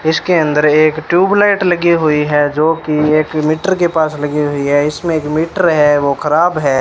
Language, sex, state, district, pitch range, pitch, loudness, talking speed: Hindi, male, Rajasthan, Bikaner, 150-170 Hz, 155 Hz, -13 LUFS, 205 wpm